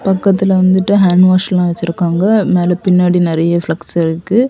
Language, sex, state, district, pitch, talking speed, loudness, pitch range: Tamil, female, Tamil Nadu, Kanyakumari, 180 Hz, 120 wpm, -12 LUFS, 170-190 Hz